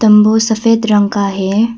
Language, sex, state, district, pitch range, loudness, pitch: Hindi, female, Arunachal Pradesh, Papum Pare, 205-225 Hz, -12 LUFS, 215 Hz